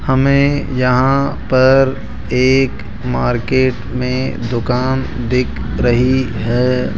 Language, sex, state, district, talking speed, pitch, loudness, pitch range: Hindi, male, Rajasthan, Jaipur, 85 wpm, 125 Hz, -15 LUFS, 120-130 Hz